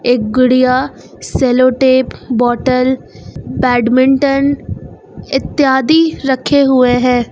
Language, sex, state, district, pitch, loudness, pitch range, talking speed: Hindi, female, Uttar Pradesh, Lucknow, 255 Hz, -12 LUFS, 250-270 Hz, 80 wpm